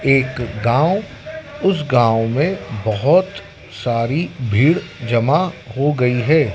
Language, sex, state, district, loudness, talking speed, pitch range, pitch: Hindi, male, Madhya Pradesh, Dhar, -17 LUFS, 110 wpm, 120-160 Hz, 135 Hz